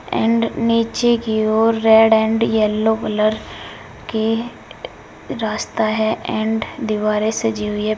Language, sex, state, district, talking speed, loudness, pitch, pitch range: Hindi, female, Uttar Pradesh, Saharanpur, 120 wpm, -18 LUFS, 220 Hz, 215-225 Hz